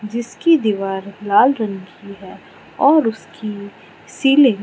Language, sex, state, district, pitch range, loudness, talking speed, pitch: Hindi, female, Arunachal Pradesh, Lower Dibang Valley, 200-270 Hz, -17 LUFS, 130 wpm, 215 Hz